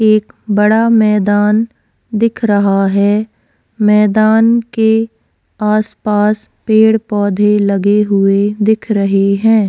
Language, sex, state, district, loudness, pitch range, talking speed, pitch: Hindi, female, Uttarakhand, Tehri Garhwal, -12 LUFS, 205-220 Hz, 95 wpm, 210 Hz